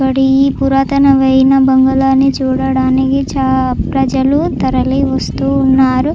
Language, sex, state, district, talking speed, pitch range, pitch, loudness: Telugu, female, Andhra Pradesh, Chittoor, 100 wpm, 265-270 Hz, 265 Hz, -12 LUFS